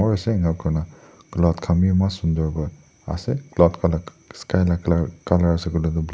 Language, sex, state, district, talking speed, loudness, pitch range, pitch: Nagamese, male, Nagaland, Dimapur, 155 wpm, -22 LUFS, 80-90 Hz, 85 Hz